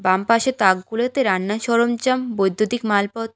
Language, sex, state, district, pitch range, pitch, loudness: Bengali, female, West Bengal, Alipurduar, 200-240 Hz, 225 Hz, -19 LUFS